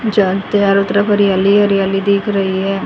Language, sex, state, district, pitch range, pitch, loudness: Hindi, female, Haryana, Rohtak, 195-205 Hz, 200 Hz, -13 LUFS